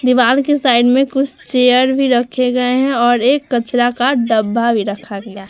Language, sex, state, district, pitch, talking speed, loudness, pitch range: Hindi, female, Bihar, Vaishali, 250 Hz, 205 wpm, -14 LUFS, 235-260 Hz